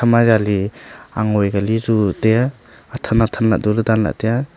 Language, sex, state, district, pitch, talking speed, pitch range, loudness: Wancho, male, Arunachal Pradesh, Longding, 110 Hz, 145 wpm, 105-115 Hz, -17 LUFS